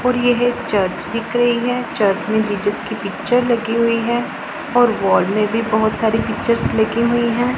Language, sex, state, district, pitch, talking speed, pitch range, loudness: Hindi, female, Punjab, Pathankot, 230 Hz, 190 wpm, 220-240 Hz, -18 LUFS